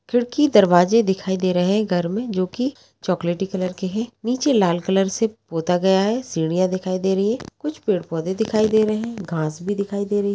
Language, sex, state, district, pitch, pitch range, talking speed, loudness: Hindi, female, Bihar, Purnia, 195 Hz, 185-220 Hz, 220 wpm, -21 LUFS